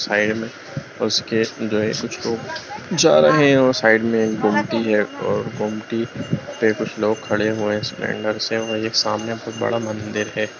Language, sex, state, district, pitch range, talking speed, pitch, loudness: Hindi, male, Bihar, Lakhisarai, 105-115 Hz, 185 wpm, 110 Hz, -20 LUFS